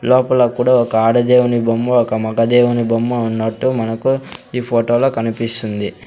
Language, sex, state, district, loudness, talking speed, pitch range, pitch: Telugu, male, Andhra Pradesh, Sri Satya Sai, -15 LUFS, 160 wpm, 115-125 Hz, 120 Hz